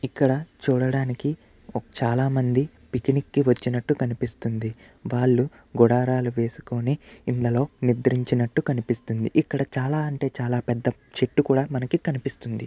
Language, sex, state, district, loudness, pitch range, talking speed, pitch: Telugu, male, Andhra Pradesh, Visakhapatnam, -24 LUFS, 120-140 Hz, 105 wpm, 130 Hz